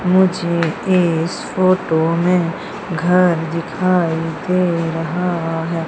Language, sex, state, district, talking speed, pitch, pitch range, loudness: Hindi, female, Madhya Pradesh, Umaria, 90 wpm, 170 Hz, 165-180 Hz, -17 LUFS